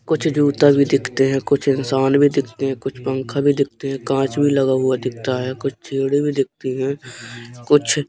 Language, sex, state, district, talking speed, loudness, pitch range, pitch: Hindi, male, Madhya Pradesh, Katni, 200 wpm, -19 LUFS, 130-140 Hz, 135 Hz